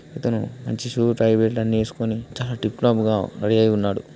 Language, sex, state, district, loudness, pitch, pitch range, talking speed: Telugu, male, Andhra Pradesh, Srikakulam, -22 LUFS, 110 Hz, 110-115 Hz, 200 wpm